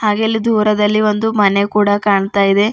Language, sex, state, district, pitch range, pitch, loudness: Kannada, female, Karnataka, Bidar, 205-215 Hz, 210 Hz, -14 LUFS